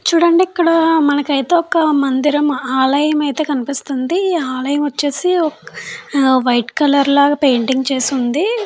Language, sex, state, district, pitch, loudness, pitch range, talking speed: Telugu, female, Andhra Pradesh, Chittoor, 290 Hz, -15 LUFS, 270-325 Hz, 120 wpm